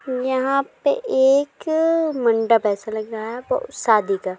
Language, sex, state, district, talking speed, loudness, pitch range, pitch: Hindi, female, Uttar Pradesh, Jyotiba Phule Nagar, 165 wpm, -20 LUFS, 220-285 Hz, 255 Hz